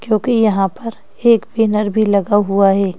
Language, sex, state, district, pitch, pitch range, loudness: Hindi, female, Madhya Pradesh, Bhopal, 210 Hz, 200-225 Hz, -15 LUFS